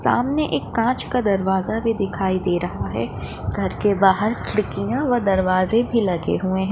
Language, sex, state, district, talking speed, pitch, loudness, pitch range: Hindi, female, Maharashtra, Nagpur, 170 wpm, 205 Hz, -21 LUFS, 190-230 Hz